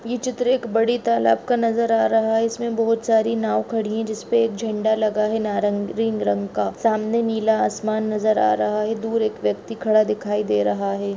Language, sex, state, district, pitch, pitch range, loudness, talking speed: Hindi, female, Chhattisgarh, Raigarh, 220 Hz, 205-225 Hz, -21 LUFS, 215 wpm